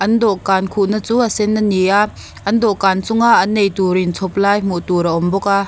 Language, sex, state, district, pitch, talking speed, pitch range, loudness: Mizo, female, Mizoram, Aizawl, 200 Hz, 220 wpm, 190-210 Hz, -15 LUFS